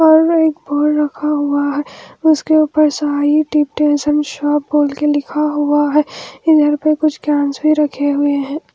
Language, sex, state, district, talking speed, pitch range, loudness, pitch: Hindi, female, Andhra Pradesh, Anantapur, 160 wpm, 290-305 Hz, -15 LUFS, 295 Hz